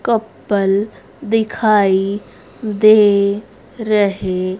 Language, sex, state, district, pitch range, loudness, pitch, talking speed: Hindi, female, Haryana, Rohtak, 195-215 Hz, -15 LUFS, 205 Hz, 50 wpm